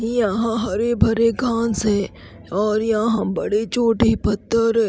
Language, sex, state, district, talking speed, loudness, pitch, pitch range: Hindi, female, Haryana, Rohtak, 135 wpm, -20 LUFS, 225 Hz, 215-230 Hz